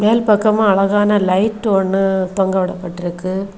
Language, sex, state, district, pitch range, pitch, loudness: Tamil, female, Tamil Nadu, Kanyakumari, 190-210 Hz, 195 Hz, -16 LUFS